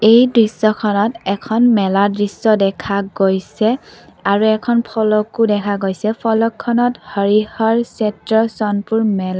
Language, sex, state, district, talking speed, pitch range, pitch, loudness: Assamese, female, Assam, Kamrup Metropolitan, 110 wpm, 200-225 Hz, 215 Hz, -16 LUFS